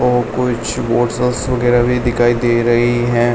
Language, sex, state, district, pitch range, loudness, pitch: Hindi, male, Uttar Pradesh, Hamirpur, 120-125 Hz, -15 LUFS, 120 Hz